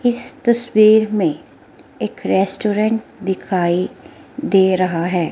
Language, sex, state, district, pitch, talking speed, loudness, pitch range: Hindi, female, Himachal Pradesh, Shimla, 210 Hz, 100 wpm, -17 LUFS, 185-230 Hz